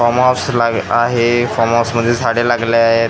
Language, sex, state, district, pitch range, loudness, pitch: Marathi, male, Maharashtra, Gondia, 115-120 Hz, -14 LUFS, 120 Hz